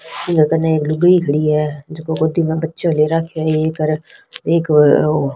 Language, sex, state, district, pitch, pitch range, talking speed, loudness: Rajasthani, female, Rajasthan, Nagaur, 160 Hz, 150-165 Hz, 190 wpm, -16 LUFS